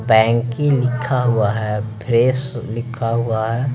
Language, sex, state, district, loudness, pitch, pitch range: Hindi, male, Bihar, Patna, -18 LUFS, 115 Hz, 110-125 Hz